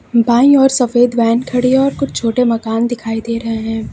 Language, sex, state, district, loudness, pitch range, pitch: Hindi, female, Uttar Pradesh, Lucknow, -14 LUFS, 230-250 Hz, 235 Hz